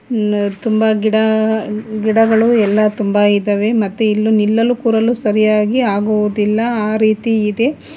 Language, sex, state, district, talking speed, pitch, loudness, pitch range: Kannada, female, Karnataka, Bangalore, 115 wpm, 215 Hz, -14 LUFS, 210-225 Hz